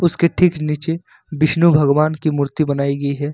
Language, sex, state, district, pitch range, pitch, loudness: Hindi, male, Jharkhand, Ranchi, 145-165 Hz, 155 Hz, -17 LUFS